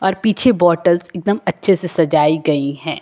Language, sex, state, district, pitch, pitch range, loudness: Hindi, female, Uttar Pradesh, Lucknow, 175 Hz, 160-190 Hz, -16 LUFS